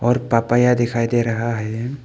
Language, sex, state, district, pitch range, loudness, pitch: Hindi, male, Arunachal Pradesh, Papum Pare, 115-120 Hz, -19 LUFS, 120 Hz